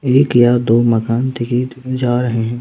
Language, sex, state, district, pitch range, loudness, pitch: Hindi, male, Madhya Pradesh, Bhopal, 120-130 Hz, -15 LUFS, 120 Hz